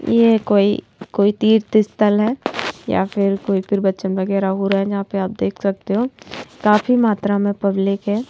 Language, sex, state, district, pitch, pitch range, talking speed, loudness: Hindi, female, Madhya Pradesh, Bhopal, 200 Hz, 195-215 Hz, 180 wpm, -18 LUFS